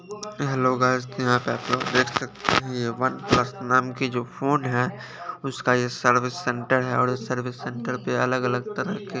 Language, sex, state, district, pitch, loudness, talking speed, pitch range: Hindi, male, Chandigarh, Chandigarh, 125 Hz, -24 LUFS, 195 wpm, 125-130 Hz